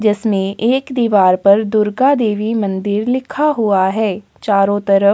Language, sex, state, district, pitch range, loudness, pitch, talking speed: Hindi, female, Uttar Pradesh, Jalaun, 200-225 Hz, -15 LUFS, 210 Hz, 150 wpm